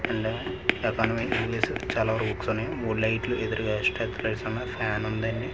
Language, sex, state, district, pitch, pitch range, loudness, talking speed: Telugu, male, Andhra Pradesh, Manyam, 115 Hz, 110-120 Hz, -28 LUFS, 95 wpm